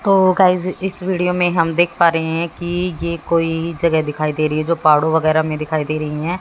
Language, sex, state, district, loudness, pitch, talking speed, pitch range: Hindi, female, Haryana, Jhajjar, -17 LUFS, 170 Hz, 245 wpm, 155-180 Hz